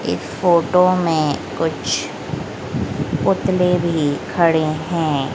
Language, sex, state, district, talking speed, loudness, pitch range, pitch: Hindi, female, Madhya Pradesh, Dhar, 90 wpm, -19 LUFS, 155-180 Hz, 165 Hz